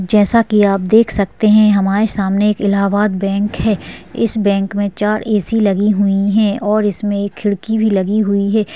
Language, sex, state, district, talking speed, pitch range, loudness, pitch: Hindi, female, West Bengal, Dakshin Dinajpur, 200 wpm, 200-215 Hz, -14 LUFS, 205 Hz